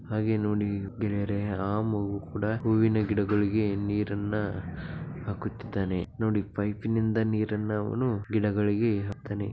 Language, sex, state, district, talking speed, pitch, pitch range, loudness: Kannada, male, Karnataka, Bijapur, 100 wpm, 105 Hz, 100-110 Hz, -29 LUFS